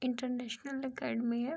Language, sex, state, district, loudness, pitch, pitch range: Hindi, female, Bihar, Gopalganj, -37 LUFS, 250 Hz, 240-265 Hz